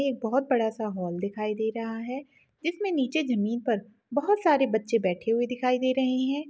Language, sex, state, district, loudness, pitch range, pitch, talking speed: Hindi, female, Uttarakhand, Tehri Garhwal, -27 LUFS, 220-275 Hz, 245 Hz, 195 wpm